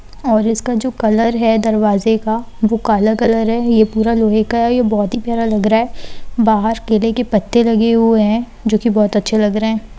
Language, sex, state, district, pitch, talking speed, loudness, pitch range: Hindi, female, Bihar, Saran, 225 Hz, 220 wpm, -14 LUFS, 215-230 Hz